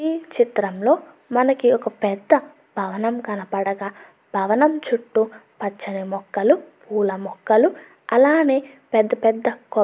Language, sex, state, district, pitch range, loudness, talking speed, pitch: Telugu, female, Andhra Pradesh, Guntur, 205-290 Hz, -21 LUFS, 110 wpm, 230 Hz